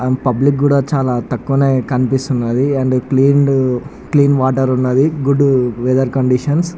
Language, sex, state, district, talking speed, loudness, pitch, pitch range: Telugu, male, Telangana, Nalgonda, 125 wpm, -14 LUFS, 130 Hz, 125-140 Hz